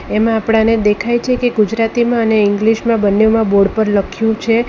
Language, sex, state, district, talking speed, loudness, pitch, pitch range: Gujarati, female, Gujarat, Valsad, 165 wpm, -14 LUFS, 225 Hz, 210-230 Hz